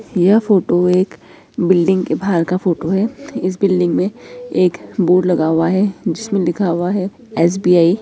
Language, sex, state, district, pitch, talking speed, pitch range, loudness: Hindi, female, Bihar, Purnia, 185 Hz, 170 wpm, 175-195 Hz, -16 LUFS